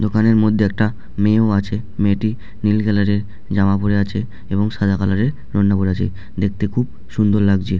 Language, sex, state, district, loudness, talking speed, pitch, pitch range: Bengali, male, West Bengal, Jalpaiguri, -18 LUFS, 185 wpm, 100 Hz, 100-105 Hz